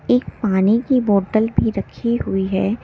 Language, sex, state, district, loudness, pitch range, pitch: Hindi, female, Delhi, New Delhi, -18 LUFS, 195-235 Hz, 215 Hz